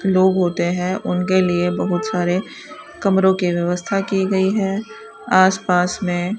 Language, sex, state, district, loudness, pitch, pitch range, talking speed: Hindi, female, Rajasthan, Bikaner, -18 LUFS, 185 Hz, 180-195 Hz, 160 wpm